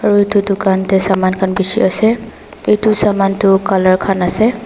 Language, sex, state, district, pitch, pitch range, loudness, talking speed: Nagamese, female, Nagaland, Dimapur, 195 Hz, 190-210 Hz, -13 LUFS, 180 wpm